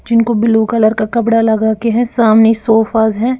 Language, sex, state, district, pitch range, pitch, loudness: Hindi, female, Bihar, Patna, 220-230 Hz, 225 Hz, -12 LUFS